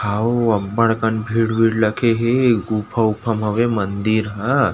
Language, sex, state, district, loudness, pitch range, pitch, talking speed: Chhattisgarhi, male, Chhattisgarh, Rajnandgaon, -18 LUFS, 110-115 Hz, 110 Hz, 165 wpm